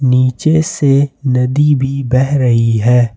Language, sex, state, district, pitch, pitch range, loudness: Hindi, male, Jharkhand, Ranchi, 130 Hz, 125-140 Hz, -13 LUFS